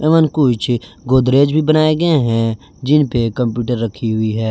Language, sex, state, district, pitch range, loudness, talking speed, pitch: Hindi, male, Jharkhand, Garhwa, 115-150 Hz, -15 LUFS, 145 wpm, 125 Hz